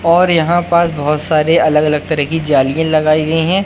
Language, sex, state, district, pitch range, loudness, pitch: Hindi, male, Madhya Pradesh, Katni, 150-170 Hz, -13 LUFS, 155 Hz